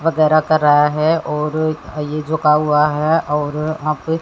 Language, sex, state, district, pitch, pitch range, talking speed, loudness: Hindi, female, Haryana, Jhajjar, 155 Hz, 150-155 Hz, 185 wpm, -16 LUFS